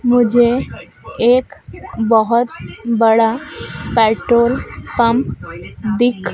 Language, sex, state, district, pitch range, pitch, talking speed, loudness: Hindi, female, Madhya Pradesh, Dhar, 225-245 Hz, 235 Hz, 65 wpm, -15 LUFS